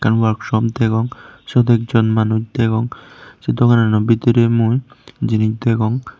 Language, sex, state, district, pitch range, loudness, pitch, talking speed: Chakma, male, Tripura, Unakoti, 110-120 Hz, -16 LUFS, 115 Hz, 125 wpm